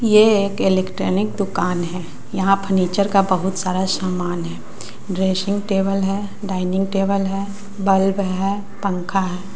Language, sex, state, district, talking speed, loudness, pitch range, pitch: Hindi, female, Bihar, West Champaran, 140 wpm, -20 LUFS, 185-200 Hz, 195 Hz